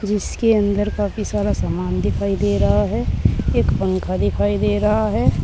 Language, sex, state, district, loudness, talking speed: Hindi, female, Uttar Pradesh, Saharanpur, -19 LUFS, 165 wpm